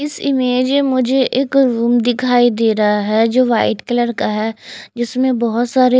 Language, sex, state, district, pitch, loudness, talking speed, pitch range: Hindi, female, Chandigarh, Chandigarh, 245 Hz, -15 LUFS, 170 wpm, 230-255 Hz